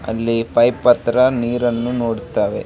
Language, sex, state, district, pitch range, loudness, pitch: Kannada, male, Karnataka, Raichur, 115-120 Hz, -17 LUFS, 120 Hz